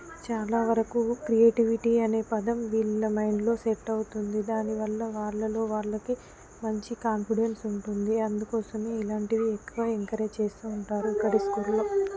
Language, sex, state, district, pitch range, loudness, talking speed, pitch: Telugu, female, Telangana, Karimnagar, 215-230 Hz, -28 LUFS, 110 wpm, 220 Hz